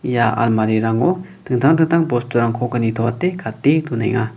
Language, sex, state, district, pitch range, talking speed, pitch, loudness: Garo, male, Meghalaya, West Garo Hills, 115-155 Hz, 125 wpm, 120 Hz, -18 LUFS